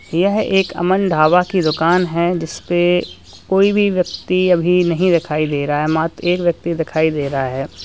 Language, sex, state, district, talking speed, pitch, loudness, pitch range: Hindi, male, Uttar Pradesh, Lalitpur, 185 wpm, 175 Hz, -16 LUFS, 160-180 Hz